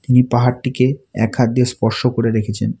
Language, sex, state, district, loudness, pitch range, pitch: Bengali, male, West Bengal, Alipurduar, -17 LUFS, 115-125 Hz, 125 Hz